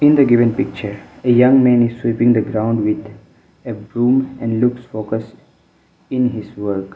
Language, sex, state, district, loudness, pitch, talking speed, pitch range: English, male, Mizoram, Aizawl, -16 LUFS, 115 Hz, 170 wpm, 105-125 Hz